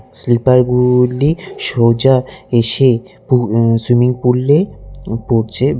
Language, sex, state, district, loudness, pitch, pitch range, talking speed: Bengali, male, West Bengal, Cooch Behar, -14 LUFS, 125 Hz, 115-130 Hz, 105 wpm